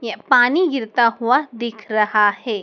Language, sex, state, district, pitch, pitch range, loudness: Hindi, male, Madhya Pradesh, Dhar, 235 Hz, 215-250 Hz, -17 LUFS